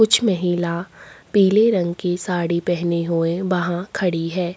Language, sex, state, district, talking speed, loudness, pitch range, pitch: Hindi, female, Chhattisgarh, Sukma, 145 wpm, -20 LUFS, 170-190 Hz, 180 Hz